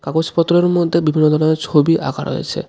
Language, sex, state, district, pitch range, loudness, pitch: Bengali, male, West Bengal, Darjeeling, 155-170 Hz, -16 LUFS, 160 Hz